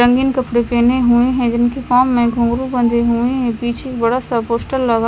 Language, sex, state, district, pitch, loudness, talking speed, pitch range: Hindi, female, Himachal Pradesh, Shimla, 240 Hz, -15 LUFS, 200 wpm, 235-255 Hz